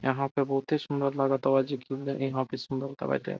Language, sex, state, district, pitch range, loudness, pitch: Maithili, male, Bihar, Saharsa, 135-140 Hz, -29 LUFS, 135 Hz